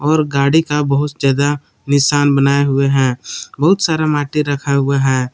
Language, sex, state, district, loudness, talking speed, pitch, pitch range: Hindi, male, Jharkhand, Palamu, -15 LUFS, 170 wpm, 140 Hz, 140-150 Hz